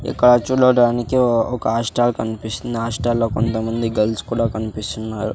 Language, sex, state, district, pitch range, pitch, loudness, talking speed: Telugu, male, Andhra Pradesh, Sri Satya Sai, 110-120 Hz, 115 Hz, -19 LUFS, 125 wpm